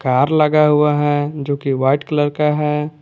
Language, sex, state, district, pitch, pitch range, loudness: Hindi, male, Jharkhand, Garhwa, 150 Hz, 145-150 Hz, -16 LUFS